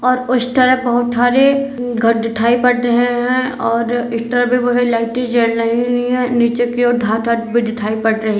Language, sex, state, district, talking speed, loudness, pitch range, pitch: Hindi, female, Uttar Pradesh, Hamirpur, 220 wpm, -15 LUFS, 230-245 Hz, 240 Hz